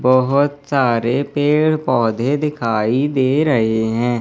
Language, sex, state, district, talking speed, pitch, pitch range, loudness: Hindi, male, Madhya Pradesh, Katni, 115 wpm, 130 Hz, 120-145 Hz, -17 LUFS